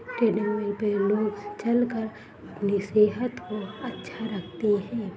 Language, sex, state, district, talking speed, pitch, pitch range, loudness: Hindi, female, Bihar, Saharsa, 125 wpm, 210 Hz, 205-225 Hz, -27 LUFS